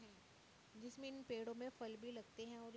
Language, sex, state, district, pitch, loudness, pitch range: Hindi, female, Uttar Pradesh, Jyotiba Phule Nagar, 235 Hz, -52 LUFS, 230-250 Hz